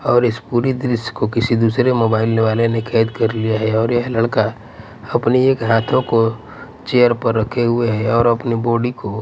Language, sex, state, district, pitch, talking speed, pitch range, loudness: Hindi, male, Punjab, Pathankot, 115 Hz, 195 wpm, 110-120 Hz, -17 LUFS